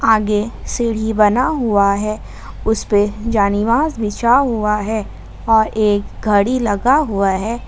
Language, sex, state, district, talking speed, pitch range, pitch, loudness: Hindi, female, Jharkhand, Ranchi, 135 wpm, 205-235 Hz, 215 Hz, -16 LUFS